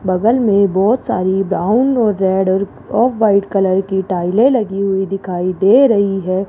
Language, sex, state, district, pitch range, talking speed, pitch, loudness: Hindi, female, Rajasthan, Jaipur, 190-215 Hz, 175 wpm, 195 Hz, -14 LUFS